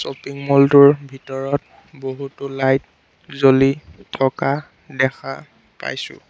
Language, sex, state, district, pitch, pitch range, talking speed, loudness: Assamese, male, Assam, Sonitpur, 140 Hz, 135-140 Hz, 95 wpm, -18 LUFS